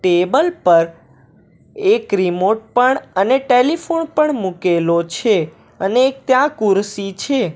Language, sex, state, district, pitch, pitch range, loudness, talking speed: Gujarati, male, Gujarat, Valsad, 225 Hz, 180-275 Hz, -16 LUFS, 120 wpm